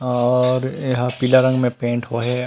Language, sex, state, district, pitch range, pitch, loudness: Chhattisgarhi, male, Chhattisgarh, Rajnandgaon, 125-130 Hz, 125 Hz, -18 LUFS